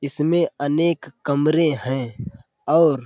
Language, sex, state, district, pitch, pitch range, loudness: Hindi, male, Uttar Pradesh, Budaun, 145 Hz, 135-165 Hz, -20 LUFS